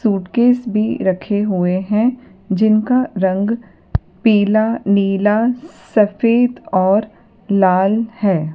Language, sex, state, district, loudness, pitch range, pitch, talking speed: Hindi, female, Madhya Pradesh, Dhar, -16 LUFS, 195-230 Hz, 210 Hz, 90 wpm